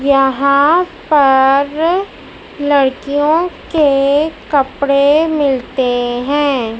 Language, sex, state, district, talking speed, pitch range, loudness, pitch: Hindi, male, Madhya Pradesh, Dhar, 60 wpm, 270-300 Hz, -13 LUFS, 280 Hz